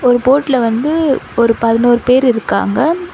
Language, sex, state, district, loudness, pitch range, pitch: Tamil, female, Tamil Nadu, Chennai, -13 LUFS, 235-280 Hz, 250 Hz